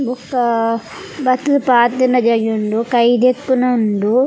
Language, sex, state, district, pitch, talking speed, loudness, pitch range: Tulu, female, Karnataka, Dakshina Kannada, 245 Hz, 100 wpm, -15 LUFS, 230-255 Hz